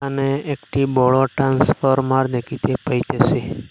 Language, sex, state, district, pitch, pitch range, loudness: Bengali, male, Assam, Hailakandi, 135 Hz, 130-140 Hz, -19 LUFS